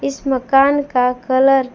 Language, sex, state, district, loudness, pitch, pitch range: Hindi, female, Jharkhand, Palamu, -15 LUFS, 270 Hz, 255-275 Hz